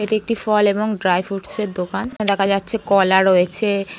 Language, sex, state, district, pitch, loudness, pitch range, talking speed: Bengali, female, West Bengal, North 24 Parganas, 200 Hz, -18 LUFS, 190-215 Hz, 180 wpm